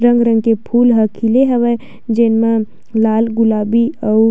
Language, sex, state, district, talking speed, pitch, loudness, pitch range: Chhattisgarhi, female, Chhattisgarh, Sukma, 165 wpm, 225 Hz, -14 LUFS, 220-235 Hz